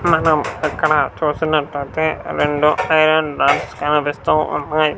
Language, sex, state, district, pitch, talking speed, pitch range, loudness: Telugu, male, Andhra Pradesh, Sri Satya Sai, 150 Hz, 95 wpm, 145-155 Hz, -17 LUFS